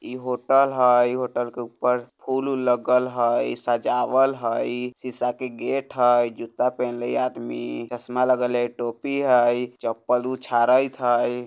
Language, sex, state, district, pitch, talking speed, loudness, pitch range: Bajjika, male, Bihar, Vaishali, 125 Hz, 145 wpm, -23 LUFS, 120-125 Hz